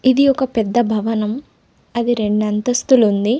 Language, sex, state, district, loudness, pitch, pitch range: Telugu, female, Telangana, Komaram Bheem, -17 LUFS, 235 Hz, 215-255 Hz